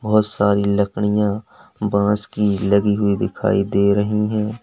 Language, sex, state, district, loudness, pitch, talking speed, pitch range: Hindi, male, Uttar Pradesh, Lalitpur, -19 LUFS, 105 Hz, 140 wpm, 100-105 Hz